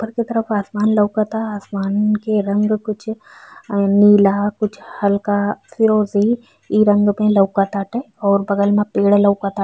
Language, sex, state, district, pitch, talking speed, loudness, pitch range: Bhojpuri, female, Uttar Pradesh, Ghazipur, 205 Hz, 145 wpm, -17 LUFS, 200-215 Hz